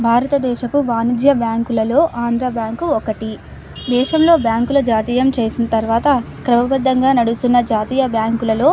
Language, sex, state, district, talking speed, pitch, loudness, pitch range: Telugu, female, Andhra Pradesh, Anantapur, 130 wpm, 240 Hz, -16 LUFS, 230-265 Hz